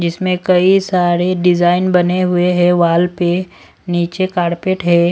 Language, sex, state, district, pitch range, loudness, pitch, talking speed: Hindi, male, Punjab, Pathankot, 175-185 Hz, -14 LUFS, 180 Hz, 140 wpm